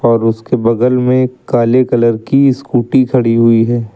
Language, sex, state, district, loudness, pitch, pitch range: Hindi, male, Uttar Pradesh, Lucknow, -12 LUFS, 120 Hz, 115-125 Hz